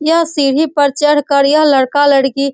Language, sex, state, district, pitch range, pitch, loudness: Hindi, female, Bihar, Saran, 275-305 Hz, 285 Hz, -12 LUFS